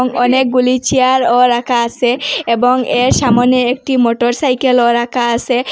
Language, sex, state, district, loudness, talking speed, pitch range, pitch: Bengali, female, Assam, Hailakandi, -13 LUFS, 125 wpm, 240-255 Hz, 250 Hz